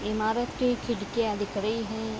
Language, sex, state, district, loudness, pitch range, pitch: Hindi, female, Bihar, Vaishali, -29 LUFS, 215-235 Hz, 220 Hz